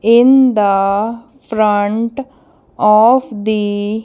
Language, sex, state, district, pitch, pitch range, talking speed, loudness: English, female, Punjab, Kapurthala, 220 Hz, 205-245 Hz, 90 wpm, -13 LUFS